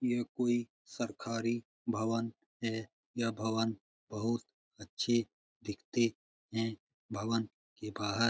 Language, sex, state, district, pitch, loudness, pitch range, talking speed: Hindi, male, Bihar, Lakhisarai, 115 Hz, -36 LUFS, 110-120 Hz, 115 wpm